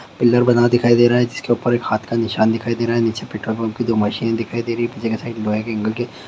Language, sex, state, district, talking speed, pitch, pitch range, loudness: Hindi, male, Bihar, Sitamarhi, 325 wpm, 115 Hz, 110-120 Hz, -18 LUFS